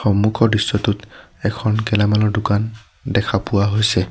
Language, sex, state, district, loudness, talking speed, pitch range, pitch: Assamese, male, Assam, Sonitpur, -18 LUFS, 115 wpm, 100-110 Hz, 105 Hz